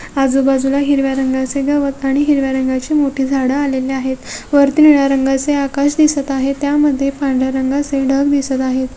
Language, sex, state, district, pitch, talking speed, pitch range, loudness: Marathi, female, Maharashtra, Solapur, 275 Hz, 155 wpm, 265-285 Hz, -15 LUFS